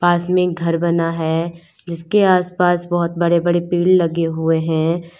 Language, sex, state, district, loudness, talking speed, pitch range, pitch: Hindi, female, Uttar Pradesh, Lalitpur, -17 LUFS, 185 wpm, 165-175 Hz, 170 Hz